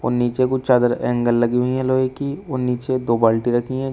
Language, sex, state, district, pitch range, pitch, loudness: Hindi, male, Uttar Pradesh, Shamli, 120-130 Hz, 125 Hz, -19 LUFS